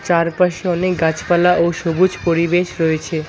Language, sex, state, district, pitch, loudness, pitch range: Bengali, male, West Bengal, Alipurduar, 170 Hz, -16 LUFS, 165-180 Hz